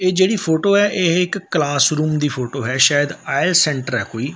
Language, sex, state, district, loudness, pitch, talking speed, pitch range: Punjabi, male, Punjab, Fazilka, -17 LUFS, 150 Hz, 220 wpm, 135-185 Hz